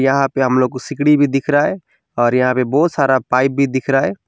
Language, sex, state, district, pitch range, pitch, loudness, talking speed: Hindi, male, West Bengal, Alipurduar, 130-145 Hz, 135 Hz, -16 LUFS, 280 wpm